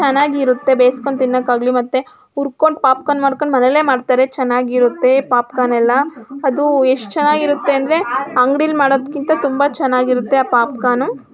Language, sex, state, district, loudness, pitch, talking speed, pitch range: Kannada, female, Karnataka, Mysore, -15 LUFS, 265 Hz, 250 wpm, 250-285 Hz